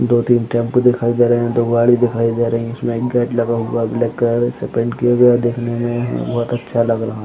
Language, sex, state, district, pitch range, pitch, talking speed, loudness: Hindi, male, Chhattisgarh, Raigarh, 115-120 Hz, 120 Hz, 275 wpm, -16 LUFS